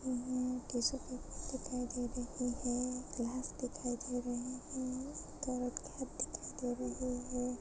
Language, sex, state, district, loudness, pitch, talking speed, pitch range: Hindi, female, Chhattisgarh, Balrampur, -40 LUFS, 250 Hz, 125 wpm, 245-255 Hz